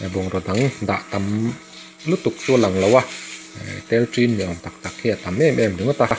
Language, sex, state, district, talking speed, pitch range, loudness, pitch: Mizo, male, Mizoram, Aizawl, 225 wpm, 95-125 Hz, -20 LUFS, 115 Hz